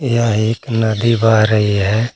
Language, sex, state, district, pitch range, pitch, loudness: Hindi, male, Jharkhand, Garhwa, 110-115 Hz, 110 Hz, -15 LUFS